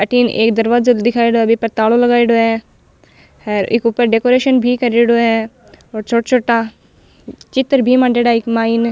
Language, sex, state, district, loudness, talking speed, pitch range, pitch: Rajasthani, female, Rajasthan, Nagaur, -13 LUFS, 175 wpm, 225-245 Hz, 235 Hz